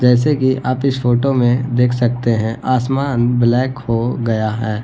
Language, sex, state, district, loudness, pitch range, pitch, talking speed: Hindi, male, Bihar, Gaya, -16 LUFS, 115-130 Hz, 125 Hz, 175 wpm